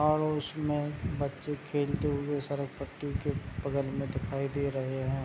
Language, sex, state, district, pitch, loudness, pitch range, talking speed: Hindi, male, Bihar, Begusarai, 140 Hz, -33 LUFS, 140-145 Hz, 160 wpm